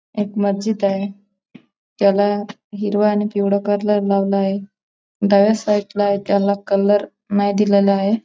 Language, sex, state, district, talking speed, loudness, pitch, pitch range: Marathi, female, Maharashtra, Dhule, 130 wpm, -18 LUFS, 205 Hz, 200-210 Hz